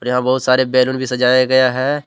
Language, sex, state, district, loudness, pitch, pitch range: Hindi, male, Jharkhand, Deoghar, -15 LUFS, 130 Hz, 125-130 Hz